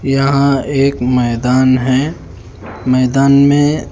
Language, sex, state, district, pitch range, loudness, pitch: Hindi, male, Haryana, Charkhi Dadri, 125-140 Hz, -13 LUFS, 130 Hz